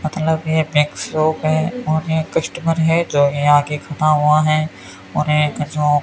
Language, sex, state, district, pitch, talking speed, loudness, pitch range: Hindi, male, Rajasthan, Bikaner, 155 Hz, 190 wpm, -17 LUFS, 150-160 Hz